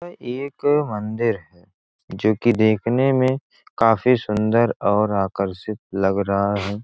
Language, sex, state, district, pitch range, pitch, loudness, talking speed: Hindi, male, Bihar, Gopalganj, 100-120 Hz, 110 Hz, -20 LUFS, 125 wpm